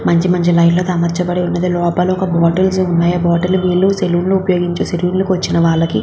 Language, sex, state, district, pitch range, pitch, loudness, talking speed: Telugu, female, Andhra Pradesh, Visakhapatnam, 170-185 Hz, 180 Hz, -14 LUFS, 200 wpm